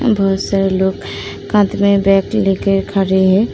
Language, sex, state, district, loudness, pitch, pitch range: Hindi, female, Uttar Pradesh, Muzaffarnagar, -14 LUFS, 195 Hz, 195-200 Hz